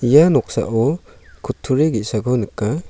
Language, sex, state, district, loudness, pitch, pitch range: Garo, male, Meghalaya, South Garo Hills, -18 LUFS, 125 Hz, 115-150 Hz